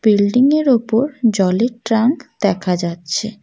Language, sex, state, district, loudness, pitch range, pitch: Bengali, female, West Bengal, Alipurduar, -16 LUFS, 200-245 Hz, 225 Hz